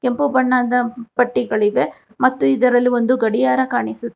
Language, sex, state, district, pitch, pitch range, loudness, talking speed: Kannada, female, Karnataka, Bangalore, 245 Hz, 215-250 Hz, -17 LUFS, 115 wpm